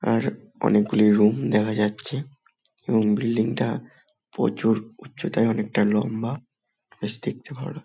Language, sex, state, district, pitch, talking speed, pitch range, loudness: Bengali, male, West Bengal, Malda, 110 Hz, 120 wpm, 105-120 Hz, -24 LUFS